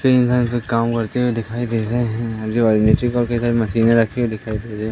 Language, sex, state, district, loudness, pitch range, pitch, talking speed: Hindi, male, Madhya Pradesh, Katni, -19 LUFS, 110-120 Hz, 115 Hz, 185 wpm